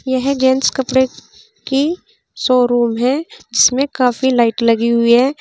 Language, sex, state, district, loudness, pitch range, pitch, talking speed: Hindi, female, Uttar Pradesh, Saharanpur, -15 LUFS, 240-270 Hz, 260 Hz, 135 wpm